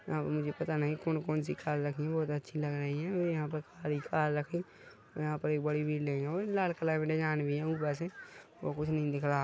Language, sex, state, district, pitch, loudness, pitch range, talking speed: Hindi, male, Chhattisgarh, Rajnandgaon, 150 Hz, -34 LUFS, 150-160 Hz, 245 wpm